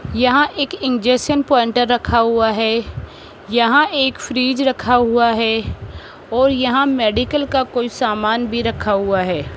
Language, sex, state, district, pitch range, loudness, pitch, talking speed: Hindi, female, Rajasthan, Jaipur, 230-265 Hz, -16 LUFS, 245 Hz, 145 wpm